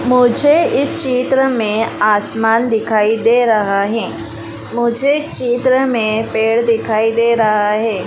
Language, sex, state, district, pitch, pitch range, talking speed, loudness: Hindi, female, Madhya Pradesh, Dhar, 225 Hz, 215-245 Hz, 135 wpm, -14 LUFS